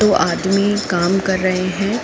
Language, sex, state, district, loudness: Hindi, female, Uttar Pradesh, Jalaun, -17 LUFS